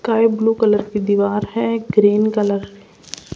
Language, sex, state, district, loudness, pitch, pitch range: Hindi, female, Rajasthan, Jaipur, -17 LUFS, 210 Hz, 205-225 Hz